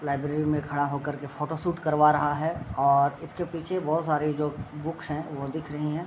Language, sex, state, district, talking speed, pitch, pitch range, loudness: Hindi, male, Bihar, Sitamarhi, 220 wpm, 150 Hz, 145-160 Hz, -27 LUFS